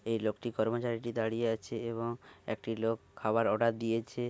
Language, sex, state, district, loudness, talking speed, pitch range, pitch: Bengali, male, West Bengal, Paschim Medinipur, -34 LUFS, 165 wpm, 110-115 Hz, 115 Hz